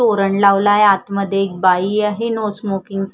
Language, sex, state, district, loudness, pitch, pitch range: Marathi, female, Maharashtra, Gondia, -16 LUFS, 200 Hz, 195-210 Hz